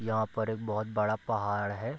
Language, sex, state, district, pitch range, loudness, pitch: Hindi, male, Bihar, Bhagalpur, 105-110 Hz, -32 LUFS, 110 Hz